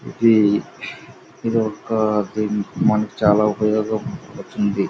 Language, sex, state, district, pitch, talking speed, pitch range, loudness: Telugu, male, Andhra Pradesh, Anantapur, 105 Hz, 60 wpm, 105-110 Hz, -19 LUFS